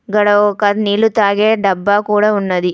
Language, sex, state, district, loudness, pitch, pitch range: Telugu, female, Telangana, Hyderabad, -13 LUFS, 205 Hz, 200-210 Hz